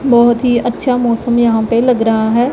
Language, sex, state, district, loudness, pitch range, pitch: Hindi, female, Punjab, Pathankot, -13 LUFS, 230-245 Hz, 240 Hz